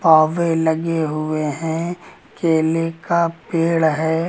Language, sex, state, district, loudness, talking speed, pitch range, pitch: Hindi, male, Uttar Pradesh, Lucknow, -19 LUFS, 110 wpm, 160-165 Hz, 165 Hz